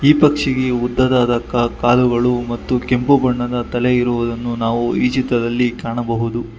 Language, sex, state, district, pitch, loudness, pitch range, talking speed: Kannada, male, Karnataka, Bangalore, 120 Hz, -17 LUFS, 120-125 Hz, 120 wpm